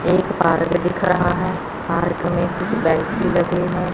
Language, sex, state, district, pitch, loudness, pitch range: Hindi, female, Chandigarh, Chandigarh, 175 Hz, -19 LUFS, 170-180 Hz